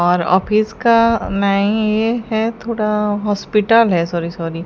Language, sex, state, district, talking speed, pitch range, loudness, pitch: Hindi, female, Odisha, Sambalpur, 155 wpm, 185-225 Hz, -16 LUFS, 210 Hz